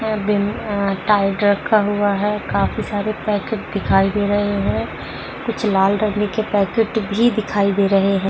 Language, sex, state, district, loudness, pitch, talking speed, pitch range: Hindi, female, Uttar Pradesh, Budaun, -19 LUFS, 205 Hz, 175 wpm, 200-215 Hz